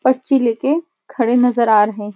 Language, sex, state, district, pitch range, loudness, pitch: Hindi, female, Uttarakhand, Uttarkashi, 225-270 Hz, -16 LUFS, 245 Hz